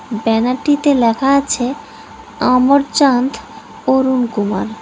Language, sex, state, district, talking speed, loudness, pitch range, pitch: Bengali, female, West Bengal, Cooch Behar, 85 wpm, -15 LUFS, 230-280 Hz, 255 Hz